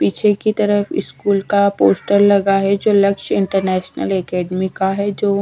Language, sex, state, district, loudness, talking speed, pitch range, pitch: Hindi, female, Odisha, Sambalpur, -16 LUFS, 165 wpm, 190-200 Hz, 200 Hz